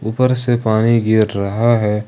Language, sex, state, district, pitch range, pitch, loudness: Hindi, male, Jharkhand, Ranchi, 105-120 Hz, 110 Hz, -15 LUFS